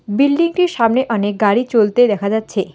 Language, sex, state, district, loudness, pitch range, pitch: Bengali, female, West Bengal, Alipurduar, -15 LUFS, 205-255 Hz, 225 Hz